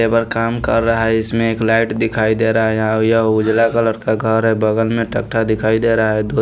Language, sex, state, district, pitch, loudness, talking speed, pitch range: Hindi, male, Punjab, Pathankot, 115 Hz, -16 LUFS, 260 wpm, 110-115 Hz